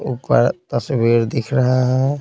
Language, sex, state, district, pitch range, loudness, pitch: Hindi, male, Bihar, Patna, 120-135 Hz, -17 LUFS, 130 Hz